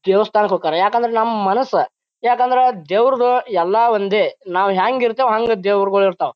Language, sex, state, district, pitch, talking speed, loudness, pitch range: Kannada, male, Karnataka, Bijapur, 215 Hz, 140 wpm, -17 LUFS, 195-245 Hz